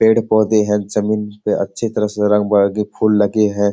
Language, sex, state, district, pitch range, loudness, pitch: Hindi, male, Bihar, Jamui, 105-110 Hz, -16 LUFS, 105 Hz